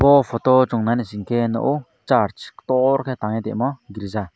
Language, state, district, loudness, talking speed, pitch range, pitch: Kokborok, Tripura, Dhalai, -20 LUFS, 165 wpm, 110-130 Hz, 120 Hz